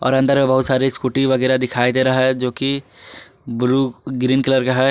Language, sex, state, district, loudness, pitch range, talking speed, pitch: Hindi, male, Jharkhand, Palamu, -17 LUFS, 130-135 Hz, 220 wpm, 130 Hz